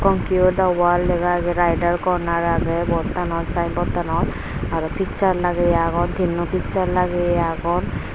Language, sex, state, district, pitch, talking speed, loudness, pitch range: Chakma, female, Tripura, Unakoti, 175 Hz, 145 wpm, -20 LUFS, 170-180 Hz